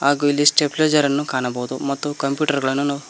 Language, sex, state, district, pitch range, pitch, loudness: Kannada, male, Karnataka, Koppal, 140-145 Hz, 145 Hz, -19 LUFS